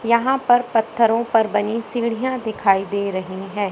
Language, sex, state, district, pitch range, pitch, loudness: Hindi, male, Madhya Pradesh, Katni, 205-235 Hz, 225 Hz, -20 LUFS